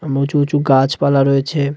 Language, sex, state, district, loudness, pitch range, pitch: Bengali, male, West Bengal, Cooch Behar, -15 LUFS, 135-145 Hz, 140 Hz